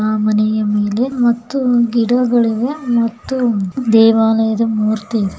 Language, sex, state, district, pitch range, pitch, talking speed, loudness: Kannada, female, Karnataka, Bellary, 215-240 Hz, 230 Hz, 100 wpm, -15 LUFS